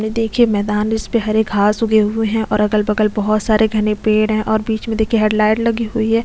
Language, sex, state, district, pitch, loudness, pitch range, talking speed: Hindi, female, Chhattisgarh, Kabirdham, 215 Hz, -16 LUFS, 215-220 Hz, 270 wpm